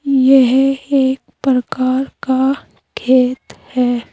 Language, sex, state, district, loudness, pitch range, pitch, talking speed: Hindi, female, Uttar Pradesh, Saharanpur, -15 LUFS, 255-270 Hz, 260 Hz, 85 wpm